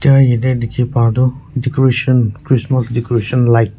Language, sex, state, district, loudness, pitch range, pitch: Nagamese, male, Nagaland, Kohima, -14 LUFS, 120-130 Hz, 125 Hz